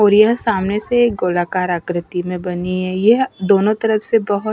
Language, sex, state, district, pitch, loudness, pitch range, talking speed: Hindi, female, Maharashtra, Mumbai Suburban, 200 Hz, -17 LUFS, 180-220 Hz, 200 wpm